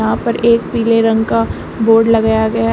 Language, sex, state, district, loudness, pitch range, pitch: Hindi, female, Uttar Pradesh, Shamli, -13 LUFS, 225-230 Hz, 225 Hz